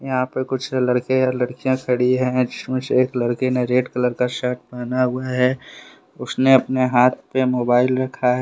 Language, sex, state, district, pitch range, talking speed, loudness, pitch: Hindi, male, Jharkhand, Deoghar, 125-130 Hz, 185 wpm, -20 LUFS, 125 Hz